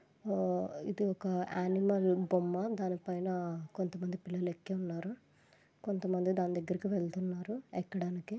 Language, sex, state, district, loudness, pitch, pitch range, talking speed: Telugu, female, Andhra Pradesh, Visakhapatnam, -36 LUFS, 185 Hz, 180-190 Hz, 115 wpm